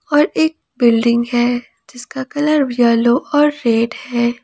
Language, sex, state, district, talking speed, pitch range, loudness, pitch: Hindi, female, Jharkhand, Ranchi, 135 wpm, 235-295 Hz, -15 LUFS, 245 Hz